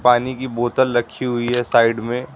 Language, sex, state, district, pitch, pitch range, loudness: Hindi, male, Uttar Pradesh, Lucknow, 120 Hz, 120-125 Hz, -19 LUFS